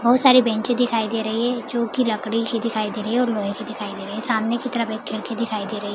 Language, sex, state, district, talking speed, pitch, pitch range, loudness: Hindi, female, Bihar, Madhepura, 300 wpm, 230 Hz, 215-240 Hz, -22 LUFS